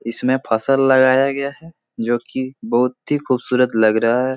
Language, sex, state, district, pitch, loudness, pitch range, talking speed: Hindi, male, Bihar, Jahanabad, 130 Hz, -18 LUFS, 120-135 Hz, 180 wpm